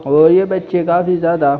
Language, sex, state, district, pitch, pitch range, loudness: Hindi, male, Chhattisgarh, Bilaspur, 170 Hz, 155-180 Hz, -14 LUFS